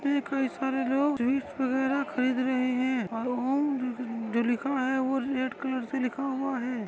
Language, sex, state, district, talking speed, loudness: Hindi, male, Maharashtra, Dhule, 190 wpm, -29 LUFS